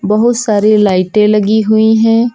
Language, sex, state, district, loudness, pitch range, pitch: Hindi, female, Uttar Pradesh, Lucknow, -10 LUFS, 210-225 Hz, 215 Hz